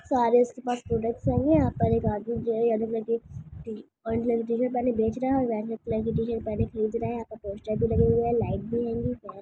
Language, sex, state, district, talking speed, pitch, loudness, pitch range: Hindi, female, Bihar, Gopalganj, 285 wpm, 230 Hz, -27 LUFS, 220-235 Hz